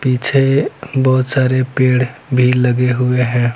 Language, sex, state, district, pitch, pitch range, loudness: Hindi, male, Bihar, Lakhisarai, 130 Hz, 125-130 Hz, -14 LUFS